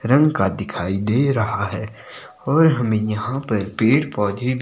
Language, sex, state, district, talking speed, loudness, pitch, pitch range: Hindi, male, Himachal Pradesh, Shimla, 155 wpm, -20 LUFS, 110 Hz, 105-135 Hz